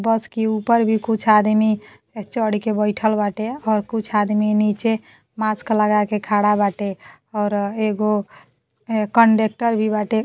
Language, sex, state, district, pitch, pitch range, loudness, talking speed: Bhojpuri, female, Uttar Pradesh, Deoria, 215 Hz, 210-220 Hz, -19 LUFS, 160 wpm